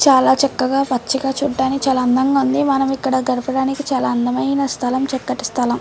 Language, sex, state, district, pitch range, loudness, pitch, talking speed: Telugu, female, Andhra Pradesh, Srikakulam, 255-275 Hz, -18 LUFS, 265 Hz, 155 wpm